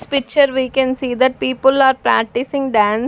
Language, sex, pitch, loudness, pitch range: English, female, 260 Hz, -16 LUFS, 250-270 Hz